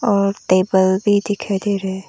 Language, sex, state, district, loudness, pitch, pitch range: Hindi, female, Arunachal Pradesh, Lower Dibang Valley, -18 LUFS, 195 Hz, 190-205 Hz